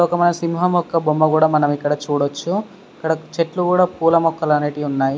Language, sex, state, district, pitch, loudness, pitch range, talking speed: Telugu, male, Telangana, Karimnagar, 160 Hz, -18 LUFS, 150-175 Hz, 210 wpm